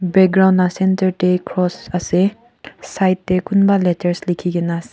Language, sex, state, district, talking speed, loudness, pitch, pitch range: Nagamese, female, Nagaland, Kohima, 160 wpm, -17 LUFS, 185 Hz, 180-190 Hz